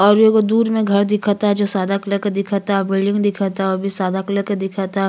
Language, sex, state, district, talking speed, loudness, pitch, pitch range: Bhojpuri, female, Uttar Pradesh, Gorakhpur, 270 wpm, -18 LUFS, 200 Hz, 195-205 Hz